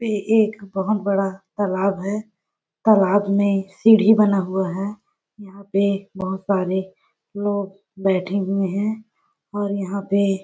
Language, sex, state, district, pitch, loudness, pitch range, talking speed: Hindi, female, Chhattisgarh, Balrampur, 200 Hz, -21 LUFS, 195-205 Hz, 130 wpm